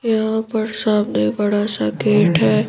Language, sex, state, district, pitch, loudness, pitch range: Hindi, female, Madhya Pradesh, Bhopal, 210 Hz, -18 LUFS, 205-220 Hz